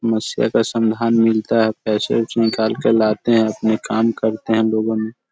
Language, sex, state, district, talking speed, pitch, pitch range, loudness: Hindi, male, Bihar, Sitamarhi, 205 wpm, 110 Hz, 110-115 Hz, -18 LUFS